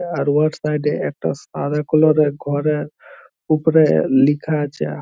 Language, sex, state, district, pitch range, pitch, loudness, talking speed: Bengali, male, West Bengal, Jhargram, 145-155 Hz, 150 Hz, -18 LUFS, 155 wpm